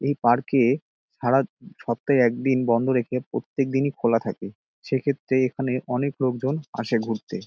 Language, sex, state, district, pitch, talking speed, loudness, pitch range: Bengali, male, West Bengal, Dakshin Dinajpur, 130 Hz, 145 wpm, -24 LUFS, 120-135 Hz